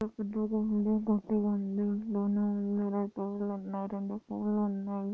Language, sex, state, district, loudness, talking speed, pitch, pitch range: Telugu, female, Andhra Pradesh, Anantapur, -32 LUFS, 80 wpm, 205 Hz, 200-210 Hz